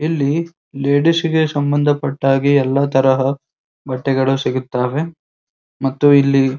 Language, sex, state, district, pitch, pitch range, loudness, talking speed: Kannada, male, Karnataka, Dharwad, 140 Hz, 135-145 Hz, -16 LUFS, 110 wpm